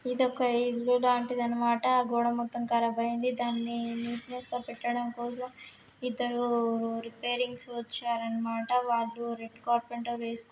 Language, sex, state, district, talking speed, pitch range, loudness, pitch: Telugu, female, Telangana, Karimnagar, 125 wpm, 235-245 Hz, -31 LUFS, 240 Hz